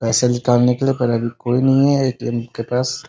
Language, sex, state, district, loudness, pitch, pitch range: Hindi, male, Bihar, Sitamarhi, -18 LUFS, 125 Hz, 120-130 Hz